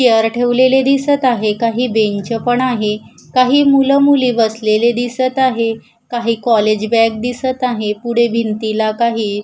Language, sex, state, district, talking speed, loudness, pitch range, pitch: Marathi, female, Maharashtra, Gondia, 140 wpm, -14 LUFS, 220-255 Hz, 235 Hz